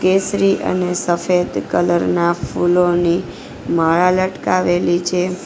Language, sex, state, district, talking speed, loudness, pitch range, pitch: Gujarati, female, Gujarat, Valsad, 100 wpm, -17 LUFS, 175-185 Hz, 180 Hz